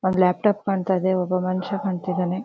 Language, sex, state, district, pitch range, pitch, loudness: Kannada, female, Karnataka, Shimoga, 185-190 Hz, 185 Hz, -23 LUFS